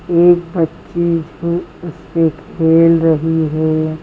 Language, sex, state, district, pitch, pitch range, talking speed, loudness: Hindi, female, Madhya Pradesh, Bhopal, 165 Hz, 160-170 Hz, 105 wpm, -15 LUFS